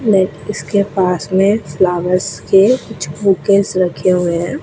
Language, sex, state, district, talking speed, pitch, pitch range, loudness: Hindi, female, Rajasthan, Bikaner, 145 wpm, 185 Hz, 175-200 Hz, -15 LUFS